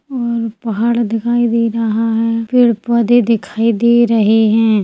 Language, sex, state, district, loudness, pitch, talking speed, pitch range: Hindi, female, Chhattisgarh, Sukma, -14 LUFS, 230 Hz, 135 wpm, 225-235 Hz